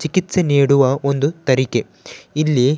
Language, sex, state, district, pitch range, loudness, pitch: Kannada, male, Karnataka, Dakshina Kannada, 130-155 Hz, -17 LUFS, 140 Hz